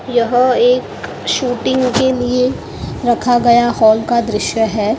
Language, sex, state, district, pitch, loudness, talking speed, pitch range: Hindi, female, Maharashtra, Mumbai Suburban, 240 Hz, -14 LUFS, 130 wpm, 230-250 Hz